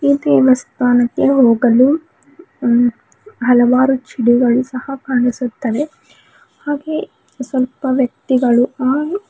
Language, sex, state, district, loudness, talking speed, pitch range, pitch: Kannada, female, Karnataka, Bidar, -15 LUFS, 70 wpm, 245-275 Hz, 255 Hz